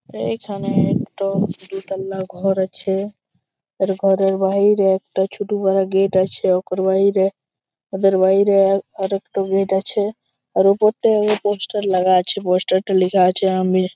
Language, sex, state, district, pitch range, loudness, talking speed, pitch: Bengali, male, West Bengal, Malda, 190-200 Hz, -18 LUFS, 140 wpm, 195 Hz